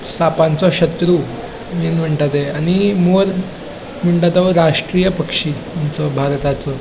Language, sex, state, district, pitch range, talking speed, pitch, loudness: Konkani, male, Goa, North and South Goa, 150-180 Hz, 115 wpm, 165 Hz, -15 LUFS